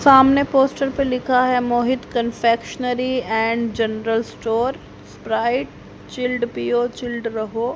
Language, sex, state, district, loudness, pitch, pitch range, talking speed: Hindi, female, Haryana, Rohtak, -20 LUFS, 240 Hz, 230-255 Hz, 115 wpm